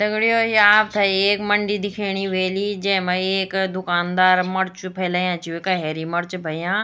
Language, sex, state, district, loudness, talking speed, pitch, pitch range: Garhwali, female, Uttarakhand, Tehri Garhwal, -20 LUFS, 150 wpm, 190 Hz, 180-205 Hz